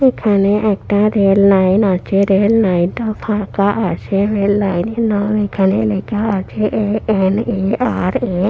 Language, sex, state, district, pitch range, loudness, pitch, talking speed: Bengali, female, West Bengal, Purulia, 195-215 Hz, -15 LUFS, 205 Hz, 115 wpm